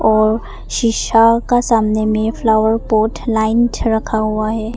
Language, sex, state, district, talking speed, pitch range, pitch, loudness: Hindi, female, Arunachal Pradesh, Papum Pare, 150 wpm, 220-230 Hz, 220 Hz, -15 LUFS